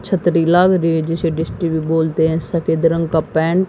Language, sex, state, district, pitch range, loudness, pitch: Hindi, female, Haryana, Jhajjar, 160-175 Hz, -16 LUFS, 165 Hz